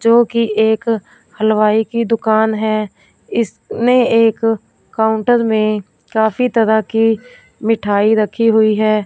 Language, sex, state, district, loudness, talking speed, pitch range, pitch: Hindi, female, Punjab, Fazilka, -15 LUFS, 115 wpm, 215-230 Hz, 220 Hz